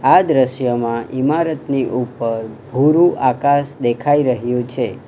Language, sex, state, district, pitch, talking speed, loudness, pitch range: Gujarati, male, Gujarat, Valsad, 130 Hz, 105 wpm, -17 LUFS, 120-140 Hz